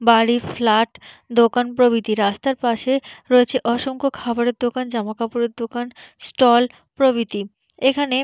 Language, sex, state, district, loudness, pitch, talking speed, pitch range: Bengali, female, West Bengal, Purulia, -19 LUFS, 240 Hz, 110 wpm, 230-255 Hz